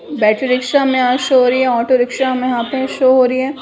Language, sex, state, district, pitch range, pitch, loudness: Hindi, female, Bihar, Purnia, 250-265 Hz, 255 Hz, -14 LUFS